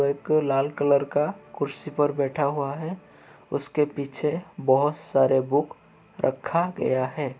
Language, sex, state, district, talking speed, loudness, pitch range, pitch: Hindi, male, Uttar Pradesh, Etah, 145 wpm, -25 LUFS, 140-150 Hz, 145 Hz